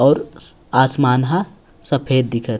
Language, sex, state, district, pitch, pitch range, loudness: Chhattisgarhi, male, Chhattisgarh, Raigarh, 130 Hz, 120-140 Hz, -18 LUFS